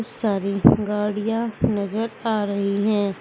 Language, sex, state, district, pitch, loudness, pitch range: Hindi, female, Uttar Pradesh, Saharanpur, 210 Hz, -22 LUFS, 200-225 Hz